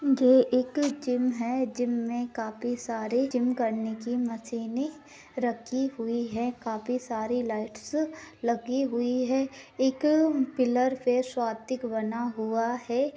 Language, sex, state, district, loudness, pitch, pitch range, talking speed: Hindi, female, Maharashtra, Sindhudurg, -28 LUFS, 245 Hz, 235-260 Hz, 130 wpm